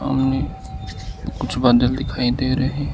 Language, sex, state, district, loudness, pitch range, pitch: Hindi, male, Arunachal Pradesh, Lower Dibang Valley, -20 LUFS, 95-130 Hz, 125 Hz